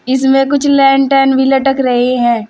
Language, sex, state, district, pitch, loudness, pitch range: Hindi, female, Uttar Pradesh, Saharanpur, 270 Hz, -11 LUFS, 255-270 Hz